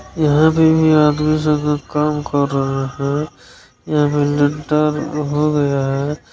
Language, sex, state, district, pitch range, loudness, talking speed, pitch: Hindi, male, Bihar, Saran, 140-150 Hz, -16 LUFS, 140 wpm, 150 Hz